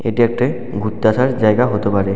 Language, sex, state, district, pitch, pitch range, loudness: Bengali, male, West Bengal, Jalpaiguri, 115 Hz, 105-125 Hz, -16 LUFS